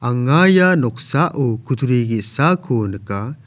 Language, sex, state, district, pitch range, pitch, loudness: Garo, male, Meghalaya, South Garo Hills, 120-150 Hz, 130 Hz, -17 LUFS